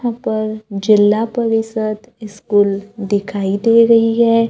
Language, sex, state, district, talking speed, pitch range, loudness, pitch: Hindi, female, Maharashtra, Gondia, 105 wpm, 205-230 Hz, -15 LUFS, 215 Hz